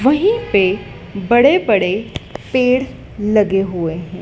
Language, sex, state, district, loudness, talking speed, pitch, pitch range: Hindi, female, Madhya Pradesh, Dhar, -16 LUFS, 115 wpm, 210 Hz, 195-260 Hz